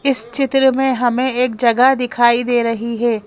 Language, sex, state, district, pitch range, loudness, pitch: Hindi, female, Madhya Pradesh, Bhopal, 235-260 Hz, -15 LUFS, 245 Hz